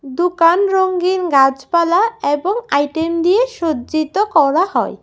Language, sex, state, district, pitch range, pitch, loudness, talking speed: Bengali, female, Tripura, West Tripura, 290-375 Hz, 335 Hz, -15 LUFS, 110 wpm